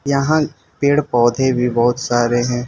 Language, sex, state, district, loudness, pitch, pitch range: Hindi, male, Arunachal Pradesh, Lower Dibang Valley, -16 LUFS, 125 Hz, 120-140 Hz